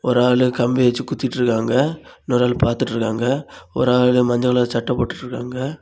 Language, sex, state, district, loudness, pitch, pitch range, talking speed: Tamil, male, Tamil Nadu, Kanyakumari, -19 LUFS, 125 Hz, 120-125 Hz, 145 wpm